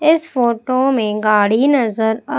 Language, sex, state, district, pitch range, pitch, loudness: Hindi, female, Madhya Pradesh, Umaria, 220-270 Hz, 240 Hz, -16 LUFS